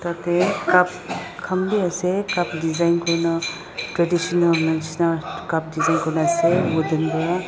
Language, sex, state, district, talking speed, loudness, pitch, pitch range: Nagamese, female, Nagaland, Dimapur, 130 wpm, -21 LUFS, 170 Hz, 165-180 Hz